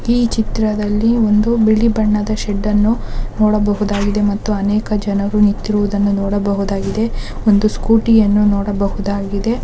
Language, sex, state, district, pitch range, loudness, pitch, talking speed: Kannada, female, Karnataka, Mysore, 205-215 Hz, -16 LUFS, 210 Hz, 95 wpm